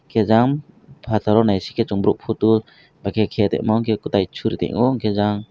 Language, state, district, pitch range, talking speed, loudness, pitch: Kokborok, Tripura, West Tripura, 105-125 Hz, 165 wpm, -20 LUFS, 110 Hz